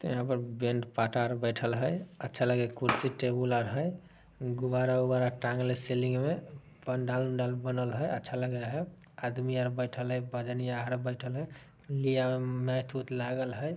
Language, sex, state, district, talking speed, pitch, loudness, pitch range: Maithili, male, Bihar, Samastipur, 145 wpm, 125 Hz, -32 LUFS, 125-130 Hz